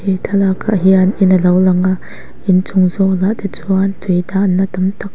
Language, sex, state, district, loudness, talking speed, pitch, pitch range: Mizo, female, Mizoram, Aizawl, -14 LUFS, 210 wpm, 190 Hz, 185-195 Hz